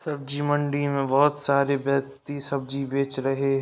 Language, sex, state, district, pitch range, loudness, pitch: Hindi, male, Uttar Pradesh, Ghazipur, 135-145 Hz, -25 LUFS, 140 Hz